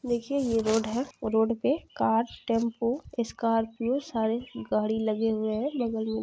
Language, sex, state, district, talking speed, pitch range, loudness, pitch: Maithili, female, Bihar, Supaul, 175 wpm, 220-245 Hz, -28 LUFS, 230 Hz